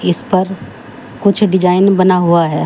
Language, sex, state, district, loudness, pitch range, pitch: Hindi, female, Uttar Pradesh, Shamli, -12 LUFS, 180-195 Hz, 185 Hz